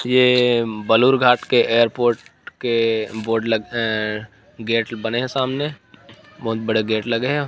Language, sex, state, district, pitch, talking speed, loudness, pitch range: Chhattisgarhi, male, Chhattisgarh, Rajnandgaon, 115 Hz, 145 wpm, -19 LUFS, 110-125 Hz